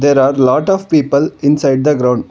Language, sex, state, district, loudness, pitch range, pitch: English, male, Karnataka, Bangalore, -12 LUFS, 135-150 Hz, 140 Hz